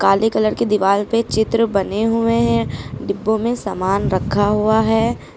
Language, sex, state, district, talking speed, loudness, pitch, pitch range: Hindi, female, Uttar Pradesh, Lucknow, 165 wpm, -18 LUFS, 210 Hz, 195-225 Hz